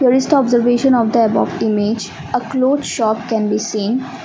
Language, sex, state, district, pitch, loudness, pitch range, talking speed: English, female, Assam, Kamrup Metropolitan, 240 Hz, -16 LUFS, 220-260 Hz, 170 wpm